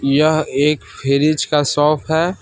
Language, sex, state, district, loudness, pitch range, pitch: Hindi, male, Jharkhand, Palamu, -16 LUFS, 140-155 Hz, 150 Hz